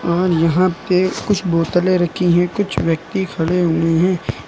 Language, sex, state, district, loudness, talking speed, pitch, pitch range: Hindi, male, Uttar Pradesh, Lucknow, -17 LUFS, 160 wpm, 175 Hz, 165-185 Hz